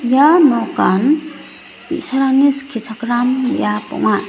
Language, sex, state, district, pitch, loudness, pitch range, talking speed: Garo, female, Meghalaya, West Garo Hills, 270 Hz, -15 LUFS, 240-295 Hz, 85 wpm